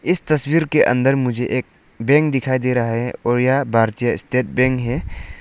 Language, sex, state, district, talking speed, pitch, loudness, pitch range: Hindi, male, Arunachal Pradesh, Lower Dibang Valley, 190 wpm, 125 Hz, -18 LUFS, 120-135 Hz